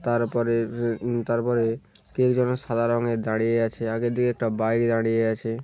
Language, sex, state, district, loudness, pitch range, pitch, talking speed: Bengali, male, West Bengal, Paschim Medinipur, -24 LUFS, 115-120 Hz, 115 Hz, 160 wpm